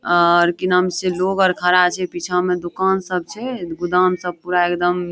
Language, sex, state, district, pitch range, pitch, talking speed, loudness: Maithili, female, Bihar, Madhepura, 175-185 Hz, 180 Hz, 200 wpm, -18 LUFS